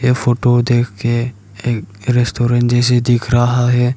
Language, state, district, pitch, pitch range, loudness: Hindi, Arunachal Pradesh, Papum Pare, 120 Hz, 120-125 Hz, -15 LUFS